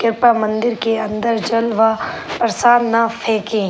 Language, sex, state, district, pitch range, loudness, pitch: Hindi, female, Uttar Pradesh, Etah, 220-230 Hz, -16 LUFS, 230 Hz